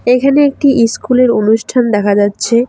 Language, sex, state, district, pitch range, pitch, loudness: Bengali, female, West Bengal, Cooch Behar, 215-250 Hz, 235 Hz, -11 LUFS